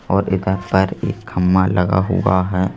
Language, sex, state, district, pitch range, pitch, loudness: Hindi, male, Madhya Pradesh, Bhopal, 90-95 Hz, 95 Hz, -17 LUFS